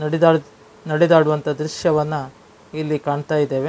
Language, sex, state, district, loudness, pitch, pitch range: Kannada, male, Karnataka, Dakshina Kannada, -19 LUFS, 150 Hz, 145-155 Hz